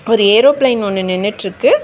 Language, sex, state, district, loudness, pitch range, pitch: Tamil, female, Tamil Nadu, Chennai, -13 LUFS, 195-235 Hz, 210 Hz